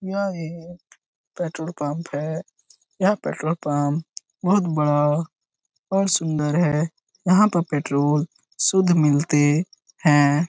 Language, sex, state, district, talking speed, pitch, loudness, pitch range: Hindi, male, Bihar, Lakhisarai, 110 wpm, 160 Hz, -22 LUFS, 145-175 Hz